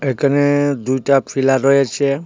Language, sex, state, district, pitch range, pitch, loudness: Bengali, male, Tripura, West Tripura, 135-145 Hz, 140 Hz, -16 LUFS